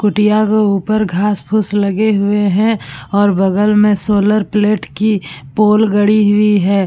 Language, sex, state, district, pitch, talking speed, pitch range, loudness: Hindi, female, Uttar Pradesh, Budaun, 205 Hz, 155 wpm, 200-215 Hz, -13 LUFS